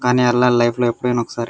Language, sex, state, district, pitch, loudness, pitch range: Telugu, male, Andhra Pradesh, Guntur, 120 Hz, -17 LUFS, 120-125 Hz